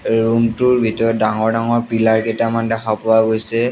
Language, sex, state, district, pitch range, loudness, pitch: Assamese, male, Assam, Sonitpur, 110-115 Hz, -16 LUFS, 115 Hz